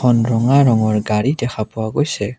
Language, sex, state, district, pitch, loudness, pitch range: Assamese, male, Assam, Kamrup Metropolitan, 115 Hz, -16 LUFS, 110-130 Hz